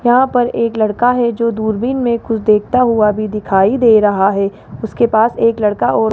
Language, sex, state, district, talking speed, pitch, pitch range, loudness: Hindi, male, Rajasthan, Jaipur, 205 wpm, 225 Hz, 210-240 Hz, -14 LUFS